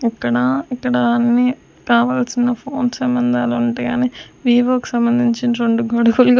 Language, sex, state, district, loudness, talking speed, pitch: Telugu, female, Andhra Pradesh, Sri Satya Sai, -17 LUFS, 120 wpm, 235 Hz